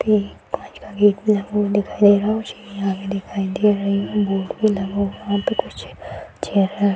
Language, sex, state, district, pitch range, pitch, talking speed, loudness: Hindi, female, Bihar, Bhagalpur, 195-210 Hz, 200 Hz, 250 wpm, -20 LUFS